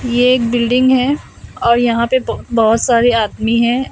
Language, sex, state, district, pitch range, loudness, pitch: Hindi, female, Assam, Sonitpur, 235-255 Hz, -14 LUFS, 240 Hz